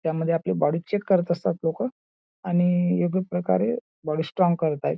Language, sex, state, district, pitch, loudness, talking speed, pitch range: Marathi, male, Maharashtra, Nagpur, 175 Hz, -24 LUFS, 170 wpm, 160-185 Hz